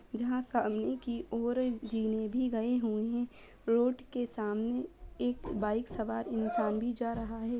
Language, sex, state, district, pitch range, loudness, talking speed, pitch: Bajjika, female, Bihar, Vaishali, 220-245 Hz, -34 LUFS, 160 wpm, 235 Hz